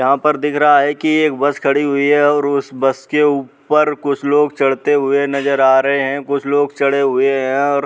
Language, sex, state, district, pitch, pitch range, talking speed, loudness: Hindi, male, Uttar Pradesh, Muzaffarnagar, 140 Hz, 135-145 Hz, 230 wpm, -15 LUFS